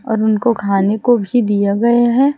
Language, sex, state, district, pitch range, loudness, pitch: Hindi, female, Chhattisgarh, Raipur, 205-240 Hz, -14 LUFS, 225 Hz